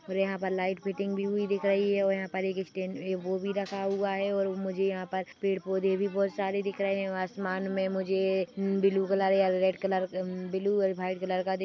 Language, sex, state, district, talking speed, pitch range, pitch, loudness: Hindi, female, Chhattisgarh, Bilaspur, 250 wpm, 190-195 Hz, 195 Hz, -30 LUFS